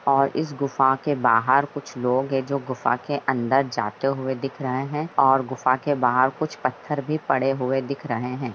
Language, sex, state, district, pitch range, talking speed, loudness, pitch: Hindi, female, Jharkhand, Sahebganj, 130-140 Hz, 210 wpm, -23 LUFS, 135 Hz